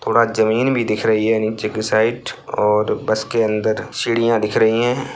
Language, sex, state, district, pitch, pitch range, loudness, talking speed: Bhojpuri, male, Bihar, Saran, 110 Hz, 110-115 Hz, -18 LUFS, 200 wpm